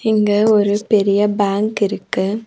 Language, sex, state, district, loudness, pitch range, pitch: Tamil, female, Tamil Nadu, Nilgiris, -16 LUFS, 205-215 Hz, 205 Hz